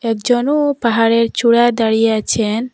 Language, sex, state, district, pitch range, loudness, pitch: Bengali, female, Assam, Hailakandi, 225-240 Hz, -14 LUFS, 230 Hz